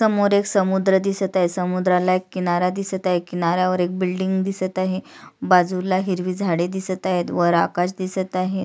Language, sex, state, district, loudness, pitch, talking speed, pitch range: Marathi, female, Maharashtra, Sindhudurg, -21 LUFS, 185 Hz, 175 wpm, 180-190 Hz